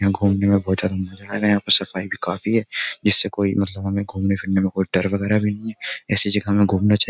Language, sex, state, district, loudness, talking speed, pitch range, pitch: Hindi, male, Uttar Pradesh, Jyotiba Phule Nagar, -19 LUFS, 260 wpm, 95-105 Hz, 100 Hz